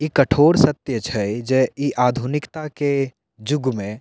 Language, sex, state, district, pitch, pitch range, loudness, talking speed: Maithili, male, Bihar, Purnia, 135 Hz, 125-150 Hz, -20 LUFS, 165 wpm